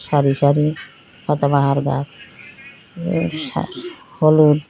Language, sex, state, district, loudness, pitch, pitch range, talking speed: Bengali, female, Assam, Hailakandi, -18 LUFS, 150 Hz, 140-160 Hz, 75 wpm